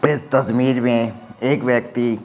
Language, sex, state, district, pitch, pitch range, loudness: Hindi, male, Bihar, Patna, 120 Hz, 120-130 Hz, -18 LUFS